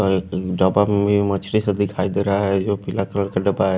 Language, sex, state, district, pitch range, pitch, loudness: Hindi, male, Haryana, Charkhi Dadri, 95-100 Hz, 100 Hz, -20 LUFS